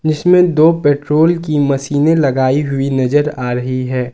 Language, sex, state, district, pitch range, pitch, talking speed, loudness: Hindi, male, Jharkhand, Garhwa, 130-155 Hz, 145 Hz, 160 wpm, -14 LUFS